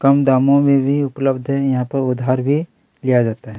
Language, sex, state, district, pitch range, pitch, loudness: Hindi, male, Chhattisgarh, Kabirdham, 130-140 Hz, 135 Hz, -17 LUFS